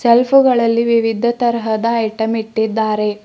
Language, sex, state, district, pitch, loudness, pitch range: Kannada, female, Karnataka, Bidar, 230 Hz, -15 LUFS, 220-235 Hz